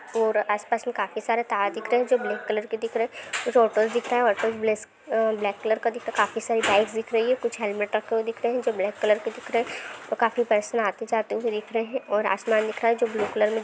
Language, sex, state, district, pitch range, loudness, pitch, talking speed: Hindi, female, Andhra Pradesh, Guntur, 215-235 Hz, -25 LUFS, 225 Hz, 280 wpm